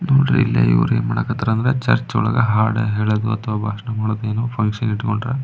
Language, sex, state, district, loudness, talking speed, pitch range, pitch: Kannada, male, Karnataka, Belgaum, -19 LUFS, 155 wpm, 105-115 Hz, 110 Hz